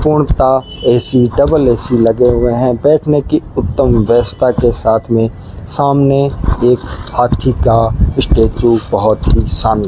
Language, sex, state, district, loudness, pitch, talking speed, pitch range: Hindi, male, Rajasthan, Bikaner, -12 LUFS, 120 Hz, 140 wpm, 110-130 Hz